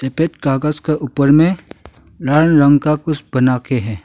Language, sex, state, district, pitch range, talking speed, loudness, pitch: Hindi, male, Arunachal Pradesh, Longding, 130-155 Hz, 175 wpm, -15 LUFS, 145 Hz